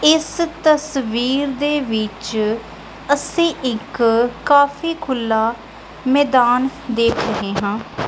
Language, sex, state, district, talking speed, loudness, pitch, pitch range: Punjabi, female, Punjab, Kapurthala, 90 wpm, -18 LUFS, 255 Hz, 225-285 Hz